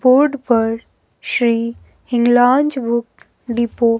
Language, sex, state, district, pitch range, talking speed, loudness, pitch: Hindi, female, Himachal Pradesh, Shimla, 235-255 Hz, 105 wpm, -16 LUFS, 235 Hz